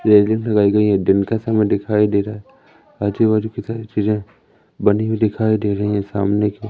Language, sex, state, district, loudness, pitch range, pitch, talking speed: Hindi, male, Madhya Pradesh, Umaria, -18 LUFS, 100-110 Hz, 105 Hz, 150 wpm